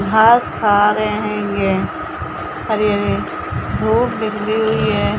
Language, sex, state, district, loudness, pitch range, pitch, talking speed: Hindi, female, Chhattisgarh, Bilaspur, -17 LUFS, 210-220 Hz, 210 Hz, 125 wpm